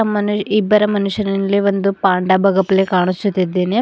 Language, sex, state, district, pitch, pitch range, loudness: Kannada, female, Karnataka, Bidar, 195 Hz, 190-205 Hz, -16 LUFS